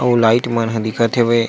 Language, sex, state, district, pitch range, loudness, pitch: Chhattisgarhi, male, Chhattisgarh, Sukma, 115-120 Hz, -16 LUFS, 115 Hz